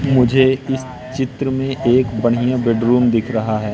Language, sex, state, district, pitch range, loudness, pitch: Hindi, male, Madhya Pradesh, Katni, 120-130 Hz, -17 LUFS, 125 Hz